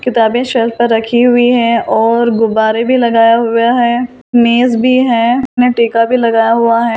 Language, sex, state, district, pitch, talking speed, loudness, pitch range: Hindi, female, Delhi, New Delhi, 235 Hz, 200 wpm, -11 LUFS, 230-245 Hz